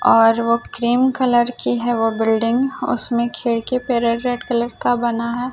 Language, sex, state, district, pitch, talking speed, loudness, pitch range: Hindi, female, Chhattisgarh, Raipur, 240 Hz, 185 wpm, -19 LUFS, 235-245 Hz